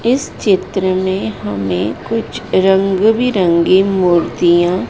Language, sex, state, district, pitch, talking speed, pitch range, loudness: Hindi, female, Madhya Pradesh, Dhar, 185 Hz, 100 wpm, 175-195 Hz, -14 LUFS